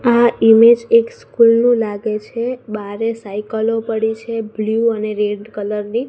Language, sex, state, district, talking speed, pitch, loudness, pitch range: Gujarati, female, Gujarat, Gandhinagar, 160 wpm, 225 Hz, -16 LUFS, 215-235 Hz